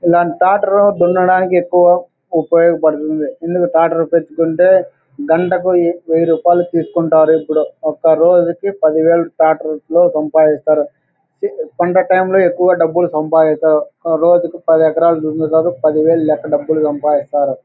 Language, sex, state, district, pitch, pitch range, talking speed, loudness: Telugu, male, Andhra Pradesh, Anantapur, 165 Hz, 155-175 Hz, 100 wpm, -13 LUFS